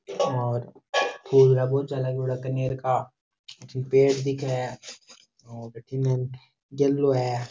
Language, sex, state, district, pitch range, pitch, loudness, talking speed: Rajasthani, male, Rajasthan, Churu, 125-135 Hz, 130 Hz, -25 LUFS, 120 wpm